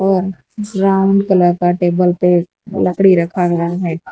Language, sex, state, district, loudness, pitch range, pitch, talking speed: Hindi, female, Gujarat, Valsad, -14 LUFS, 175-195 Hz, 180 Hz, 145 wpm